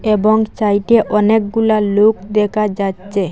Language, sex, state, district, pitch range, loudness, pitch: Bengali, female, Assam, Hailakandi, 205-220 Hz, -14 LUFS, 210 Hz